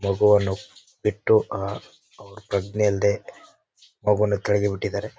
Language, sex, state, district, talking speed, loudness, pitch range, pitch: Kannada, male, Karnataka, Bijapur, 105 wpm, -23 LUFS, 100-105 Hz, 100 Hz